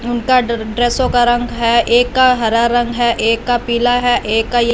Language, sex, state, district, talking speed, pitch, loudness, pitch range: Hindi, female, Punjab, Fazilka, 240 wpm, 240 Hz, -14 LUFS, 235-245 Hz